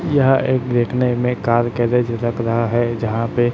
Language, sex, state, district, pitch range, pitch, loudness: Hindi, male, Chhattisgarh, Raipur, 115-125 Hz, 120 Hz, -18 LUFS